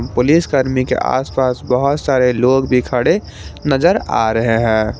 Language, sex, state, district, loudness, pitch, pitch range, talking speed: Hindi, male, Jharkhand, Garhwa, -15 LUFS, 130 Hz, 120-135 Hz, 145 wpm